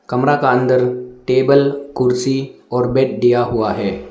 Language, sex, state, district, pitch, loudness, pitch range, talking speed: Hindi, male, Arunachal Pradesh, Lower Dibang Valley, 125 Hz, -16 LUFS, 120-135 Hz, 145 wpm